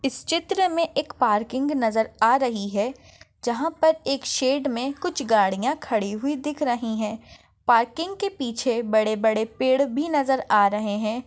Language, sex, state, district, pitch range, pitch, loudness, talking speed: Hindi, female, Maharashtra, Nagpur, 220-290 Hz, 260 Hz, -23 LUFS, 170 wpm